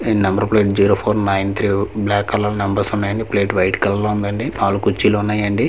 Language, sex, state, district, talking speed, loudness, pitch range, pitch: Telugu, male, Andhra Pradesh, Manyam, 220 wpm, -17 LUFS, 100-105 Hz, 100 Hz